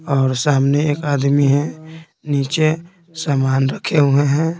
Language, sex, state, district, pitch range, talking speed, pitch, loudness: Hindi, male, Bihar, Patna, 140-160 Hz, 130 wpm, 145 Hz, -17 LUFS